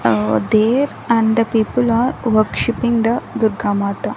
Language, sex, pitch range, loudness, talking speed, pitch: English, female, 205-235 Hz, -17 LUFS, 130 wpm, 225 Hz